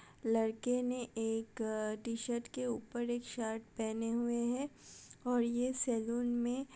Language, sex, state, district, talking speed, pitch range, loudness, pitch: Hindi, female, Uttar Pradesh, Budaun, 140 wpm, 225-245 Hz, -37 LUFS, 235 Hz